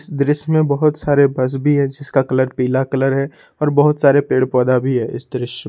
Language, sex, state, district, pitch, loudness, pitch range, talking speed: Hindi, male, Jharkhand, Ranchi, 140 Hz, -16 LUFS, 130-145 Hz, 230 wpm